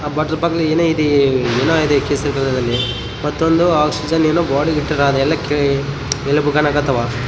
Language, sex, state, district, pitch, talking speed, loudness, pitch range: Kannada, male, Karnataka, Raichur, 145 Hz, 100 wpm, -16 LUFS, 140-155 Hz